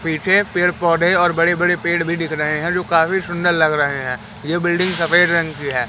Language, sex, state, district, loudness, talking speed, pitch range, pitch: Hindi, male, Madhya Pradesh, Katni, -17 LUFS, 235 wpm, 155-175 Hz, 170 Hz